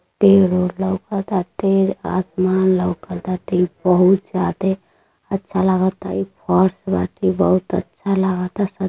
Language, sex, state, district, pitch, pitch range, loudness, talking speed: Bhojpuri, male, Uttar Pradesh, Deoria, 185 Hz, 180-195 Hz, -19 LUFS, 115 wpm